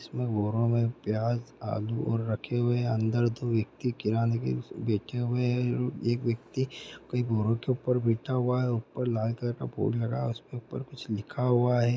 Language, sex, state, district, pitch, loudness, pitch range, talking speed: Hindi, male, Bihar, Gopalganj, 120 Hz, -30 LUFS, 115-125 Hz, 195 wpm